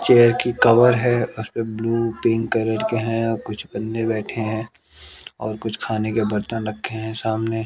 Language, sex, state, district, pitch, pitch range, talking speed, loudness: Hindi, male, Bihar, West Champaran, 115 Hz, 110-115 Hz, 180 wpm, -21 LUFS